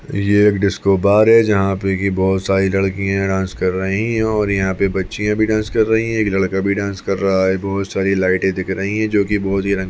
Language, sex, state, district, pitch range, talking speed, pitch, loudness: Hindi, male, Chhattisgarh, Bastar, 95-105 Hz, 260 wpm, 100 Hz, -17 LUFS